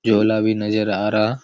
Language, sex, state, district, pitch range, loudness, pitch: Hindi, male, Chhattisgarh, Raigarh, 105-110 Hz, -19 LUFS, 110 Hz